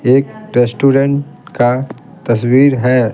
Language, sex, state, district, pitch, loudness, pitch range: Hindi, male, Bihar, Patna, 130 Hz, -13 LUFS, 120-135 Hz